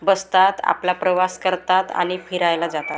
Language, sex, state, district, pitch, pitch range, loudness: Marathi, female, Maharashtra, Gondia, 185 Hz, 175-185 Hz, -19 LUFS